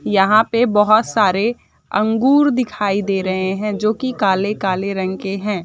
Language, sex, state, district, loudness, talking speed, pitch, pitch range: Hindi, female, Bihar, Madhepura, -17 LUFS, 170 wpm, 210 Hz, 195-225 Hz